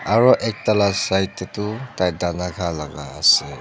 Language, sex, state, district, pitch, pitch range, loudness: Nagamese, male, Nagaland, Dimapur, 95 Hz, 90-105 Hz, -20 LUFS